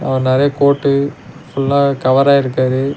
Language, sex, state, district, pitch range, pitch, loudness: Tamil, male, Tamil Nadu, Nilgiris, 130-140 Hz, 140 Hz, -14 LUFS